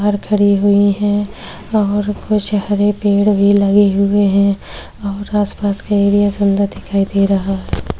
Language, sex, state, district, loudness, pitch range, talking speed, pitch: Hindi, female, Maharashtra, Chandrapur, -15 LUFS, 200-205 Hz, 160 wpm, 200 Hz